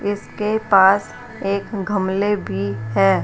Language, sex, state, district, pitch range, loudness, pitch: Hindi, female, Rajasthan, Jaipur, 170-205 Hz, -19 LUFS, 195 Hz